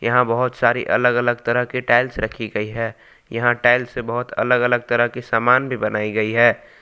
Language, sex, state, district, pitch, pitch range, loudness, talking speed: Hindi, male, Jharkhand, Palamu, 120 Hz, 115-125 Hz, -19 LUFS, 210 wpm